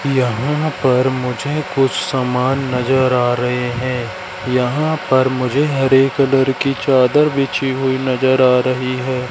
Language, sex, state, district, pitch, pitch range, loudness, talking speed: Hindi, male, Madhya Pradesh, Katni, 130 Hz, 125-140 Hz, -16 LUFS, 140 wpm